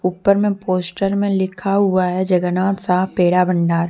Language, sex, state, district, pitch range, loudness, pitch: Hindi, female, Jharkhand, Deoghar, 180-195 Hz, -17 LUFS, 185 Hz